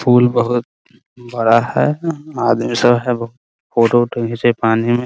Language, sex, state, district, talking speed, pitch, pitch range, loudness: Hindi, male, Bihar, Muzaffarpur, 190 wpm, 120 Hz, 115-125 Hz, -16 LUFS